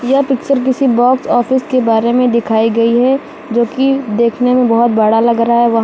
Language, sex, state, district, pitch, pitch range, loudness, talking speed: Hindi, female, Uttar Pradesh, Lucknow, 240 Hz, 230-260 Hz, -12 LUFS, 215 wpm